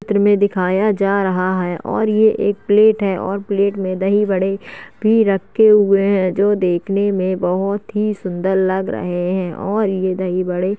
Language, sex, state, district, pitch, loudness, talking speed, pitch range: Hindi, male, Uttar Pradesh, Jalaun, 195 Hz, -17 LUFS, 190 wpm, 185-205 Hz